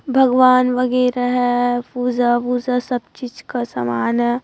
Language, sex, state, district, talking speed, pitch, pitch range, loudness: Hindi, female, Chhattisgarh, Raipur, 135 wpm, 250 Hz, 240-250 Hz, -18 LUFS